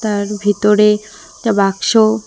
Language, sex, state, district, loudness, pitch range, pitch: Bengali, female, West Bengal, Cooch Behar, -14 LUFS, 205-215 Hz, 210 Hz